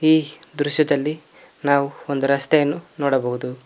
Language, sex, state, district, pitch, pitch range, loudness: Kannada, male, Karnataka, Koppal, 145 Hz, 140-155 Hz, -20 LUFS